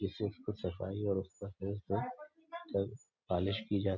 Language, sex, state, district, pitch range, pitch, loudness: Hindi, male, Uttar Pradesh, Budaun, 95-105 Hz, 100 Hz, -38 LUFS